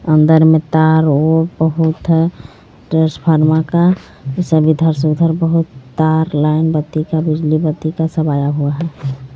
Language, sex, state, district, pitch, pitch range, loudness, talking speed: Hindi, female, Jharkhand, Garhwa, 160 Hz, 150-160 Hz, -14 LUFS, 145 wpm